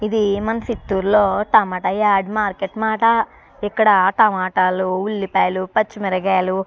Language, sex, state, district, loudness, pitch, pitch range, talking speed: Telugu, female, Andhra Pradesh, Chittoor, -18 LUFS, 205 Hz, 190-215 Hz, 125 wpm